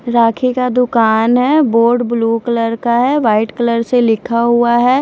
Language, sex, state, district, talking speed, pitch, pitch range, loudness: Hindi, female, Punjab, Fazilka, 180 wpm, 235 Hz, 230-250 Hz, -13 LUFS